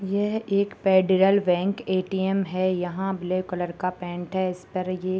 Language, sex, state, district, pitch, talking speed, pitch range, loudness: Hindi, male, Bihar, Bhagalpur, 185 Hz, 185 wpm, 185-195 Hz, -25 LUFS